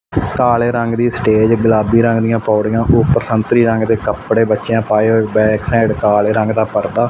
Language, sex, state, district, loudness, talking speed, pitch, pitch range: Punjabi, male, Punjab, Fazilka, -14 LUFS, 185 wpm, 115 Hz, 110-115 Hz